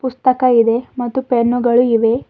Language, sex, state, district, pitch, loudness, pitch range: Kannada, female, Karnataka, Bidar, 245 Hz, -15 LUFS, 235-255 Hz